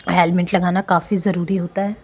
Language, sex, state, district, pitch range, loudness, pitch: Hindi, female, Maharashtra, Chandrapur, 175-195 Hz, -18 LUFS, 190 Hz